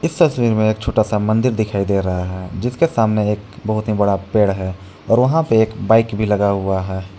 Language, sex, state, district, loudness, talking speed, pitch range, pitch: Hindi, male, Jharkhand, Palamu, -17 LUFS, 235 wpm, 100-115 Hz, 105 Hz